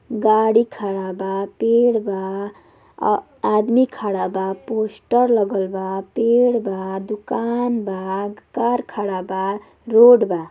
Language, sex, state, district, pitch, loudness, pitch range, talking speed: Bhojpuri, female, Uttar Pradesh, Deoria, 210 Hz, -19 LUFS, 195-235 Hz, 115 wpm